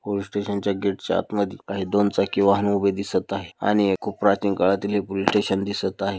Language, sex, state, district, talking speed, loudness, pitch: Marathi, male, Maharashtra, Dhule, 205 wpm, -23 LUFS, 100 Hz